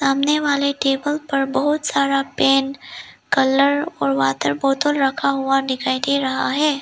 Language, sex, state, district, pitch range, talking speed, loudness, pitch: Hindi, female, Arunachal Pradesh, Lower Dibang Valley, 270-285 Hz, 150 wpm, -19 LUFS, 275 Hz